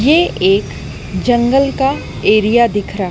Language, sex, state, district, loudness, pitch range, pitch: Hindi, male, Madhya Pradesh, Dhar, -14 LUFS, 205-270 Hz, 235 Hz